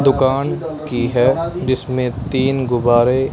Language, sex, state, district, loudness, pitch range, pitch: Hindi, male, Punjab, Kapurthala, -17 LUFS, 125-135 Hz, 130 Hz